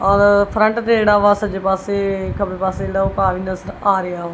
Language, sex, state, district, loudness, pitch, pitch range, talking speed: Punjabi, female, Punjab, Kapurthala, -17 LUFS, 195 Hz, 190-205 Hz, 180 wpm